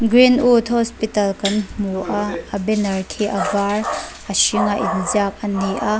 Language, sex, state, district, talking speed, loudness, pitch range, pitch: Mizo, female, Mizoram, Aizawl, 160 wpm, -19 LUFS, 200-220 Hz, 205 Hz